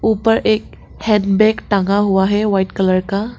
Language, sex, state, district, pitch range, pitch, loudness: Hindi, female, Arunachal Pradesh, Papum Pare, 195-220 Hz, 205 Hz, -16 LUFS